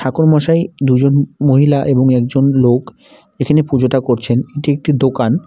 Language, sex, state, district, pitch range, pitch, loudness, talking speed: Bengali, male, West Bengal, Alipurduar, 130-150 Hz, 140 Hz, -13 LUFS, 130 wpm